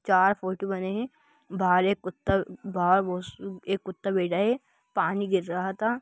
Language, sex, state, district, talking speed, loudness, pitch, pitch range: Hindi, female, Bihar, Gaya, 160 wpm, -27 LUFS, 195 Hz, 185-200 Hz